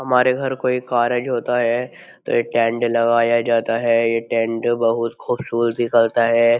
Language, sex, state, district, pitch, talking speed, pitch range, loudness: Hindi, male, Uttar Pradesh, Jyotiba Phule Nagar, 120 Hz, 165 wpm, 115-120 Hz, -19 LUFS